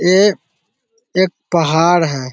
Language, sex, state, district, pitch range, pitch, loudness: Magahi, male, Bihar, Jahanabad, 165-195 Hz, 175 Hz, -15 LUFS